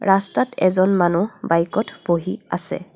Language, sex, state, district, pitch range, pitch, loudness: Assamese, female, Assam, Kamrup Metropolitan, 175-195 Hz, 185 Hz, -19 LUFS